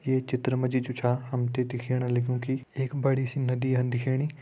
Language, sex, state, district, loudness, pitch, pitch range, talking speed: Hindi, male, Uttarakhand, Tehri Garhwal, -28 LUFS, 130 Hz, 125-130 Hz, 230 wpm